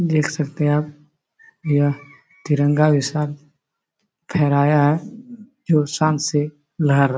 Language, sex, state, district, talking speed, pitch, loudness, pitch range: Hindi, male, Uttar Pradesh, Etah, 125 wpm, 150 Hz, -19 LUFS, 145-160 Hz